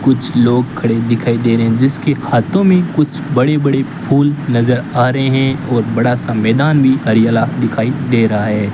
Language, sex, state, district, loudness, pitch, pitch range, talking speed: Hindi, male, Rajasthan, Bikaner, -14 LUFS, 125 Hz, 115-140 Hz, 185 wpm